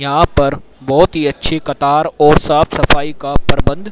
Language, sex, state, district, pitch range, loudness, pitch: Hindi, male, Haryana, Rohtak, 140-155 Hz, -13 LUFS, 145 Hz